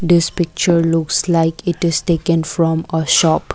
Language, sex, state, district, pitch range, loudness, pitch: English, female, Assam, Kamrup Metropolitan, 165-175 Hz, -16 LUFS, 165 Hz